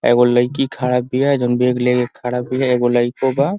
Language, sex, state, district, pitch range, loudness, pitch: Bhojpuri, male, Uttar Pradesh, Ghazipur, 120-130 Hz, -17 LUFS, 125 Hz